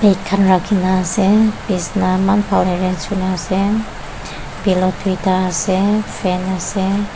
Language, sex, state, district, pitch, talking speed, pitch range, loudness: Nagamese, female, Nagaland, Dimapur, 190 Hz, 140 wpm, 185-200 Hz, -16 LUFS